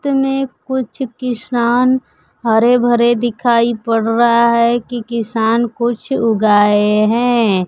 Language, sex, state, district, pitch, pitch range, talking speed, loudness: Hindi, female, Bihar, Kaimur, 235 Hz, 225-245 Hz, 115 wpm, -14 LUFS